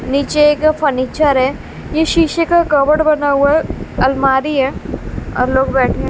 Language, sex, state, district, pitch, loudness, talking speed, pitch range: Hindi, female, Bihar, West Champaran, 285 Hz, -14 LUFS, 155 wpm, 265-310 Hz